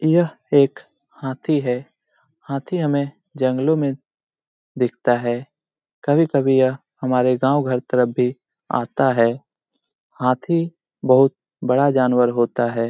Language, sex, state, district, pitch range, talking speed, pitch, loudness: Hindi, male, Bihar, Jamui, 125-145 Hz, 115 wpm, 135 Hz, -20 LUFS